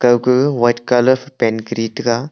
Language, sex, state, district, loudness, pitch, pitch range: Wancho, male, Arunachal Pradesh, Longding, -16 LUFS, 120 Hz, 120-130 Hz